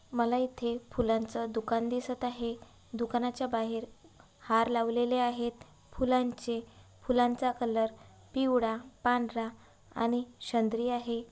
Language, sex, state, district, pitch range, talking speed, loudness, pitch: Marathi, female, Maharashtra, Chandrapur, 230-245 Hz, 100 wpm, -32 LUFS, 235 Hz